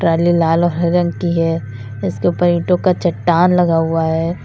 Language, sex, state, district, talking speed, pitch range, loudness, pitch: Hindi, female, Uttar Pradesh, Lalitpur, 200 wpm, 165-175 Hz, -15 LUFS, 170 Hz